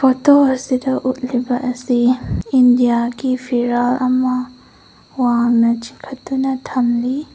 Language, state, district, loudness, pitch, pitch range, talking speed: Manipuri, Manipur, Imphal West, -17 LUFS, 255 Hz, 245-265 Hz, 90 wpm